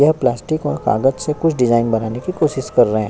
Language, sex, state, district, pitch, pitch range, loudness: Hindi, male, Uttar Pradesh, Jyotiba Phule Nagar, 130 Hz, 115-155 Hz, -17 LUFS